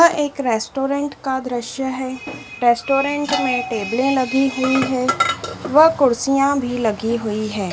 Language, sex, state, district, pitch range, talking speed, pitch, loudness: Hindi, female, Madhya Pradesh, Dhar, 240-275 Hz, 140 wpm, 260 Hz, -19 LUFS